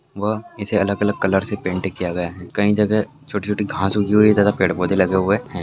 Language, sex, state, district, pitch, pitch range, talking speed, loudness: Maithili, male, Bihar, Purnia, 100 Hz, 95-105 Hz, 225 wpm, -19 LUFS